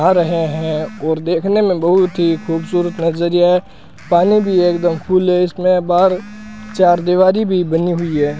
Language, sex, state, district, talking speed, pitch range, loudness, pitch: Hindi, male, Rajasthan, Bikaner, 155 wpm, 170-185 Hz, -15 LUFS, 175 Hz